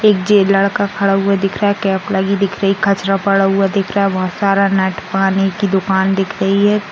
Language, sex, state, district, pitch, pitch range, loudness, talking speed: Hindi, female, Bihar, Vaishali, 195 Hz, 195-200 Hz, -15 LUFS, 210 wpm